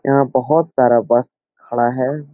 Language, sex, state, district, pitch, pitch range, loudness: Hindi, male, Bihar, Supaul, 130 Hz, 120-140 Hz, -16 LUFS